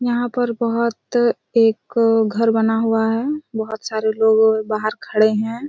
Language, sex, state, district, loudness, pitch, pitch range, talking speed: Hindi, female, Chhattisgarh, Raigarh, -18 LUFS, 225 Hz, 220-235 Hz, 145 wpm